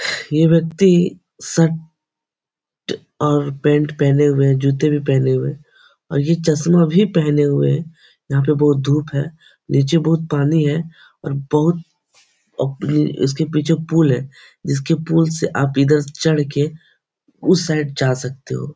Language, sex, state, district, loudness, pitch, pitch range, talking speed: Hindi, male, Bihar, Supaul, -17 LUFS, 150 Hz, 140-160 Hz, 170 wpm